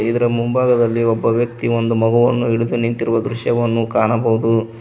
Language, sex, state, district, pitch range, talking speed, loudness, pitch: Kannada, male, Karnataka, Koppal, 115-120 Hz, 125 wpm, -17 LUFS, 115 Hz